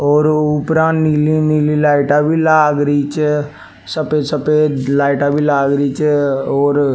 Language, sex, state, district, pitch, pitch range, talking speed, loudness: Rajasthani, male, Rajasthan, Nagaur, 150 Hz, 145-150 Hz, 145 wpm, -14 LUFS